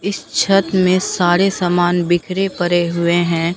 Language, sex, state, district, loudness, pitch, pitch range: Hindi, male, Bihar, Katihar, -16 LUFS, 175 Hz, 175-190 Hz